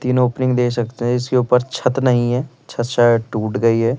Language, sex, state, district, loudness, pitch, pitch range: Hindi, male, Delhi, New Delhi, -18 LUFS, 125 Hz, 120-125 Hz